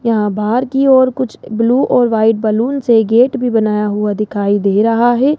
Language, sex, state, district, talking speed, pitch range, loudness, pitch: Hindi, male, Rajasthan, Jaipur, 200 wpm, 210-250 Hz, -13 LUFS, 230 Hz